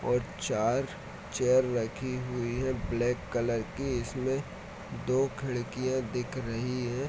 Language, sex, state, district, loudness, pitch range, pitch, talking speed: Hindi, male, Jharkhand, Sahebganj, -31 LUFS, 120-130 Hz, 125 Hz, 135 wpm